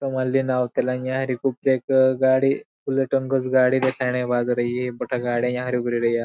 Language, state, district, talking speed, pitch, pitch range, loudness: Bhili, Maharashtra, Dhule, 190 wpm, 130 Hz, 125-130 Hz, -22 LUFS